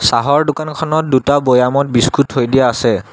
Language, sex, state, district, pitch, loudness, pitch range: Assamese, male, Assam, Sonitpur, 135 Hz, -13 LUFS, 120-145 Hz